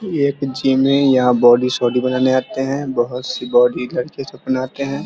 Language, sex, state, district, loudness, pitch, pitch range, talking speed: Hindi, male, Bihar, Vaishali, -17 LUFS, 130 Hz, 125-135 Hz, 190 wpm